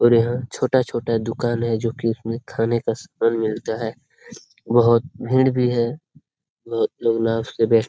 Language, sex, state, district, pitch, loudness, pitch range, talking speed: Hindi, male, Bihar, Jamui, 115 Hz, -21 LUFS, 115-130 Hz, 130 wpm